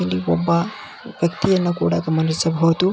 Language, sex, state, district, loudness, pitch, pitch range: Kannada, male, Karnataka, Belgaum, -19 LUFS, 165 Hz, 160-180 Hz